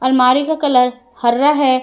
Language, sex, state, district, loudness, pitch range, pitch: Hindi, female, Jharkhand, Palamu, -14 LUFS, 250-280 Hz, 255 Hz